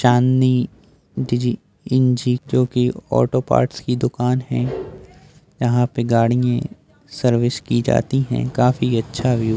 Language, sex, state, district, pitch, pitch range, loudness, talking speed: Hindi, male, Bihar, Samastipur, 125 Hz, 120-125 Hz, -19 LUFS, 105 wpm